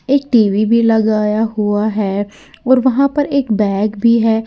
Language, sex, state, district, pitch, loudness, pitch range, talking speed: Hindi, female, Uttar Pradesh, Lalitpur, 220 Hz, -14 LUFS, 210-255 Hz, 175 wpm